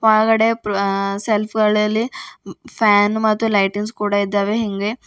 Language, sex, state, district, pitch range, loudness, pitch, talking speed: Kannada, female, Karnataka, Bidar, 205-220 Hz, -18 LUFS, 210 Hz, 105 wpm